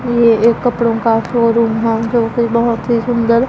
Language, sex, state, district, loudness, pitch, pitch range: Hindi, female, Punjab, Pathankot, -14 LUFS, 235 Hz, 230-235 Hz